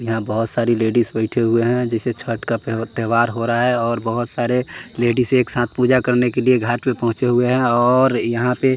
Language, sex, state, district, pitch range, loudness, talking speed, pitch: Hindi, male, Bihar, West Champaran, 115-125 Hz, -18 LUFS, 220 wpm, 120 Hz